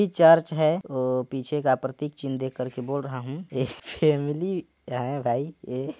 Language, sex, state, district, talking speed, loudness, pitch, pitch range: Hindi, male, Chhattisgarh, Balrampur, 180 wpm, -26 LUFS, 140 Hz, 130-155 Hz